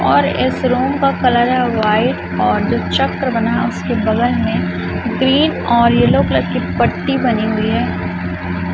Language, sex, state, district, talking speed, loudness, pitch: Hindi, female, Chhattisgarh, Raipur, 165 wpm, -15 LUFS, 215 Hz